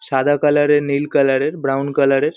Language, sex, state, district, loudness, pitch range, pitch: Bengali, male, West Bengal, Kolkata, -16 LUFS, 135-145 Hz, 140 Hz